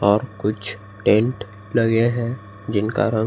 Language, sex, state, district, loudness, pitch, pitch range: Hindi, male, Chhattisgarh, Raipur, -21 LUFS, 105 Hz, 100-115 Hz